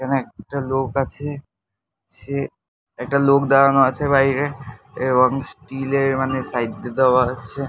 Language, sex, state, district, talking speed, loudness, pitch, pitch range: Bengali, male, West Bengal, North 24 Parganas, 140 wpm, -19 LUFS, 135 Hz, 125-140 Hz